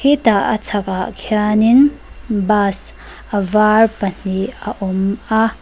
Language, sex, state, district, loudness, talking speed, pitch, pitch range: Mizo, female, Mizoram, Aizawl, -16 LUFS, 140 wpm, 210 Hz, 200-225 Hz